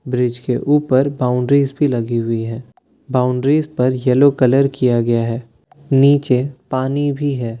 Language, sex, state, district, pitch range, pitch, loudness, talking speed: Hindi, male, Bihar, Katihar, 125-140 Hz, 130 Hz, -16 LUFS, 150 wpm